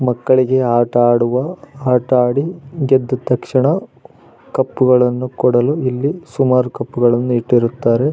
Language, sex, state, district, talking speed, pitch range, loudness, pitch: Kannada, male, Karnataka, Raichur, 95 wpm, 120-135 Hz, -15 LUFS, 125 Hz